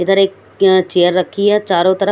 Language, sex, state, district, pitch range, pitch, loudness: Hindi, female, Maharashtra, Gondia, 185-195 Hz, 190 Hz, -14 LUFS